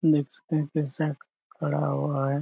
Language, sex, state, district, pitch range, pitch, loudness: Hindi, male, Jharkhand, Sahebganj, 130-155 Hz, 145 Hz, -28 LUFS